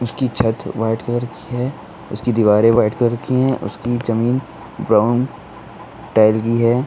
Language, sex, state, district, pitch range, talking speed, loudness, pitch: Hindi, male, Uttar Pradesh, Muzaffarnagar, 110-125 Hz, 155 wpm, -18 LUFS, 120 Hz